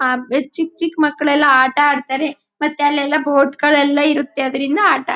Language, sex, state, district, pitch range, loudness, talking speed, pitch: Kannada, female, Karnataka, Chamarajanagar, 270-300 Hz, -16 LUFS, 165 wpm, 290 Hz